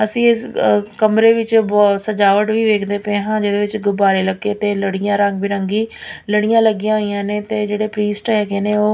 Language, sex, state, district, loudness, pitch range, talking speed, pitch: Punjabi, female, Punjab, Pathankot, -16 LUFS, 205-215 Hz, 195 wpm, 210 Hz